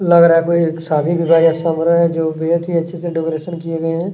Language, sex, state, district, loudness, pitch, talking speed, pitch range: Hindi, male, Chhattisgarh, Kabirdham, -15 LUFS, 165 Hz, 290 wpm, 165-170 Hz